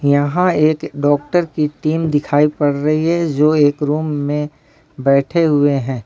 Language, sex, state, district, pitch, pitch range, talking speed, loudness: Hindi, male, Jharkhand, Ranchi, 150 Hz, 145-155 Hz, 160 wpm, -16 LUFS